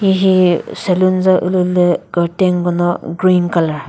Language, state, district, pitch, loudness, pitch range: Chakhesang, Nagaland, Dimapur, 180 Hz, -14 LUFS, 175-185 Hz